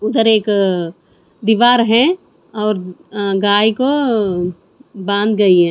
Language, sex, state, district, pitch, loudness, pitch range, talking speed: Hindi, female, Chandigarh, Chandigarh, 210 Hz, -15 LUFS, 190-225 Hz, 115 wpm